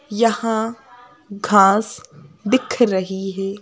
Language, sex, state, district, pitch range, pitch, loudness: Hindi, female, Madhya Pradesh, Bhopal, 195-230 Hz, 210 Hz, -18 LUFS